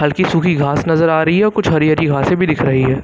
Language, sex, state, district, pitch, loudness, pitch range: Hindi, male, Uttar Pradesh, Lucknow, 160 Hz, -14 LUFS, 145-175 Hz